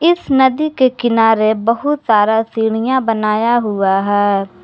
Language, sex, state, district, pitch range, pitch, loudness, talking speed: Hindi, female, Jharkhand, Garhwa, 215-260 Hz, 225 Hz, -14 LUFS, 130 wpm